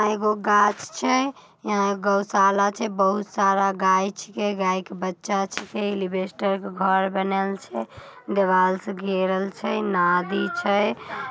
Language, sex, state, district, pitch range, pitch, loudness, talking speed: Magahi, female, Bihar, Samastipur, 190-205 Hz, 195 Hz, -23 LUFS, 140 wpm